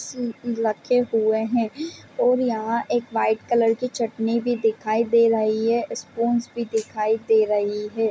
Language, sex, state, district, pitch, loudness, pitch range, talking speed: Hindi, female, Chhattisgarh, Raigarh, 230 Hz, -22 LUFS, 220-235 Hz, 155 wpm